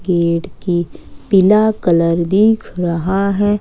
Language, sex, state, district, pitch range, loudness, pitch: Hindi, female, Jharkhand, Ranchi, 170-205 Hz, -15 LUFS, 185 Hz